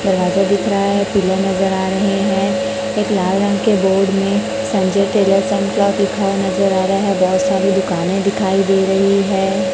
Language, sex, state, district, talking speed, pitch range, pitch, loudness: Hindi, male, Chhattisgarh, Raipur, 170 wpm, 190-195 Hz, 195 Hz, -15 LUFS